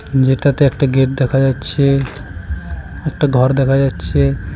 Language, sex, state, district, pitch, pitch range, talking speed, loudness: Bengali, male, West Bengal, Cooch Behar, 135 Hz, 90-140 Hz, 120 wpm, -15 LUFS